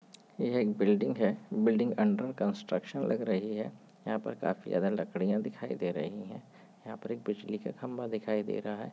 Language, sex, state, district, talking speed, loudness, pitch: Hindi, male, Goa, North and South Goa, 195 wpm, -33 LUFS, 120 Hz